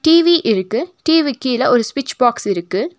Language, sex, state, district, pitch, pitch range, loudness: Tamil, female, Tamil Nadu, Nilgiris, 255 Hz, 230-325 Hz, -16 LUFS